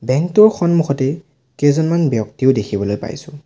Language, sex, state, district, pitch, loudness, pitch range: Assamese, male, Assam, Sonitpur, 145 Hz, -16 LUFS, 125-165 Hz